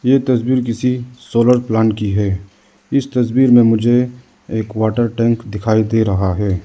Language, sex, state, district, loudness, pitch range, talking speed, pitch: Hindi, male, Arunachal Pradesh, Lower Dibang Valley, -16 LUFS, 110-125 Hz, 160 wpm, 115 Hz